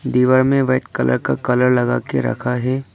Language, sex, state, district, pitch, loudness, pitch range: Hindi, male, Arunachal Pradesh, Lower Dibang Valley, 125 Hz, -17 LUFS, 125-130 Hz